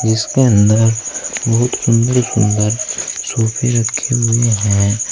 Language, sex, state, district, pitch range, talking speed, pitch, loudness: Hindi, male, Uttar Pradesh, Saharanpur, 110-120 Hz, 105 wpm, 115 Hz, -14 LUFS